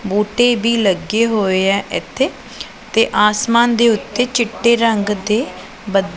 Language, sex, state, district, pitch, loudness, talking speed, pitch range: Punjabi, female, Punjab, Pathankot, 220 Hz, -16 LUFS, 125 wpm, 205-235 Hz